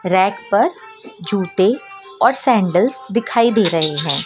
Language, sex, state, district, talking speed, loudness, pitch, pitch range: Hindi, female, Madhya Pradesh, Dhar, 125 wpm, -17 LUFS, 220 Hz, 185-260 Hz